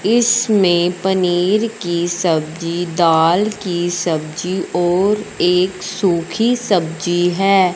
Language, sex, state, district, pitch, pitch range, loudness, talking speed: Hindi, male, Punjab, Fazilka, 180 Hz, 175-195 Hz, -16 LUFS, 95 wpm